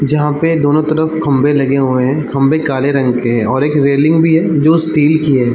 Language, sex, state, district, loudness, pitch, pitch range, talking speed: Hindi, male, Jharkhand, Jamtara, -12 LUFS, 145 Hz, 135-155 Hz, 250 wpm